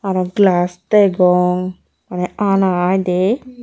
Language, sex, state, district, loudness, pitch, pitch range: Chakma, female, Tripura, Unakoti, -15 LUFS, 185 Hz, 180-200 Hz